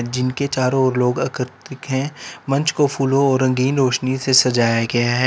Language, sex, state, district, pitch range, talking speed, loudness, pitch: Hindi, male, Uttar Pradesh, Lalitpur, 125-135 Hz, 180 wpm, -18 LUFS, 130 Hz